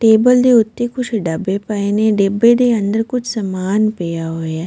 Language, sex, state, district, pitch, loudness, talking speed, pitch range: Punjabi, female, Delhi, New Delhi, 215 Hz, -15 LUFS, 190 wpm, 190-235 Hz